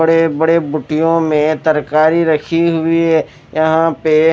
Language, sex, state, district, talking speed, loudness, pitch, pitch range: Hindi, male, Chandigarh, Chandigarh, 140 wpm, -14 LUFS, 160 Hz, 155-165 Hz